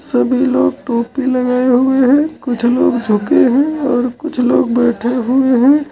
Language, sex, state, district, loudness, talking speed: Hindi, male, Uttar Pradesh, Lucknow, -14 LUFS, 160 wpm